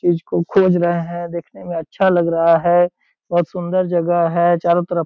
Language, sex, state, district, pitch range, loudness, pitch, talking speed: Hindi, male, Bihar, Purnia, 170-175 Hz, -17 LUFS, 175 Hz, 200 wpm